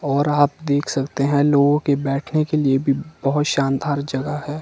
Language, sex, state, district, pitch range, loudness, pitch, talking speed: Hindi, male, Himachal Pradesh, Shimla, 140-150 Hz, -20 LUFS, 145 Hz, 195 wpm